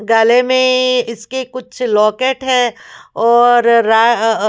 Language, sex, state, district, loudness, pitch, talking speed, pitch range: Hindi, female, Bihar, Patna, -13 LUFS, 240 Hz, 120 wpm, 225-255 Hz